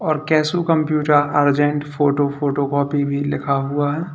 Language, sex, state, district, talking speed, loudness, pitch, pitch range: Hindi, male, Uttar Pradesh, Lalitpur, 145 wpm, -18 LUFS, 145 Hz, 145-155 Hz